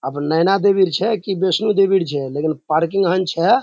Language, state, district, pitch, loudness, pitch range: Surjapuri, Bihar, Kishanganj, 185 Hz, -17 LUFS, 155-195 Hz